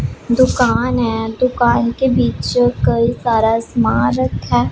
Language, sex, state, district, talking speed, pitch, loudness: Hindi, female, Punjab, Pathankot, 125 wpm, 220 Hz, -15 LUFS